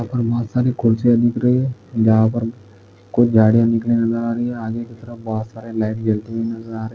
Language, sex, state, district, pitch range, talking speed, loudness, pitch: Hindi, male, Goa, North and South Goa, 110-120 Hz, 240 wpm, -18 LUFS, 115 Hz